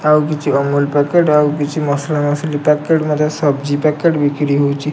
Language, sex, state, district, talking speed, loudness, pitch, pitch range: Odia, male, Odisha, Nuapada, 170 wpm, -15 LUFS, 150 Hz, 145-150 Hz